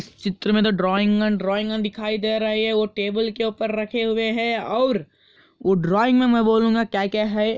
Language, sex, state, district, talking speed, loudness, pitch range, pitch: Hindi, female, Andhra Pradesh, Anantapur, 190 wpm, -21 LUFS, 205-225 Hz, 215 Hz